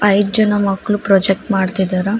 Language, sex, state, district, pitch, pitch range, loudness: Kannada, female, Karnataka, Raichur, 200 Hz, 195-210 Hz, -15 LUFS